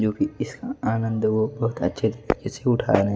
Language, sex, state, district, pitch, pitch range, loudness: Hindi, male, Delhi, New Delhi, 110 Hz, 110-130 Hz, -24 LUFS